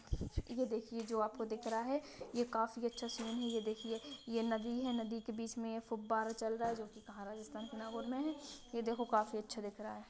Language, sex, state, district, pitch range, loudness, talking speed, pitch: Hindi, female, Rajasthan, Nagaur, 220-235 Hz, -41 LUFS, 230 wpm, 230 Hz